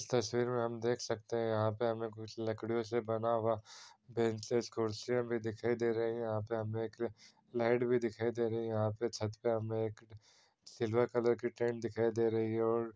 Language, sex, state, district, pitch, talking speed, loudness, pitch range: Hindi, male, Bihar, East Champaran, 115 Hz, 220 wpm, -36 LUFS, 110-120 Hz